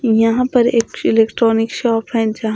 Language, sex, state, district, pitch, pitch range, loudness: Hindi, female, Odisha, Khordha, 225 Hz, 225-235 Hz, -15 LUFS